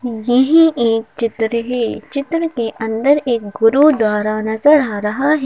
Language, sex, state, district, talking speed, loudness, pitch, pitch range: Hindi, female, Madhya Pradesh, Bhopal, 145 wpm, -15 LUFS, 235 Hz, 225-285 Hz